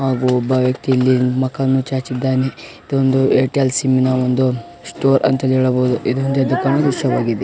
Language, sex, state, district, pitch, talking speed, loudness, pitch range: Kannada, male, Karnataka, Raichur, 130 Hz, 160 wpm, -17 LUFS, 130-135 Hz